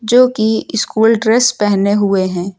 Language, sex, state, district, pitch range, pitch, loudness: Hindi, female, Uttar Pradesh, Lucknow, 200-225 Hz, 220 Hz, -13 LUFS